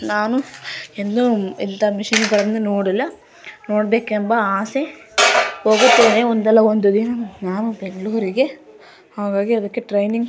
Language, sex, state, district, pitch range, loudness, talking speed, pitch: Kannada, female, Karnataka, Dharwad, 205-230 Hz, -17 LUFS, 95 wpm, 215 Hz